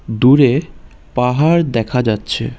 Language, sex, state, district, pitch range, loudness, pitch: Bengali, male, West Bengal, Cooch Behar, 115-145 Hz, -14 LUFS, 125 Hz